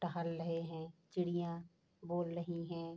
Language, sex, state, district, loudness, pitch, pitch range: Hindi, female, Bihar, Bhagalpur, -42 LUFS, 170 Hz, 165-175 Hz